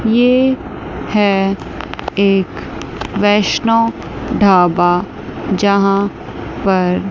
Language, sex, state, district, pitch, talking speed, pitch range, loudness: Hindi, female, Chandigarh, Chandigarh, 200 Hz, 60 wpm, 195-225 Hz, -14 LUFS